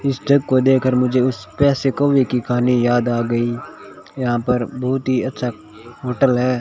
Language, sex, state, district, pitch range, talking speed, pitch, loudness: Hindi, male, Rajasthan, Bikaner, 120-135 Hz, 180 wpm, 125 Hz, -18 LUFS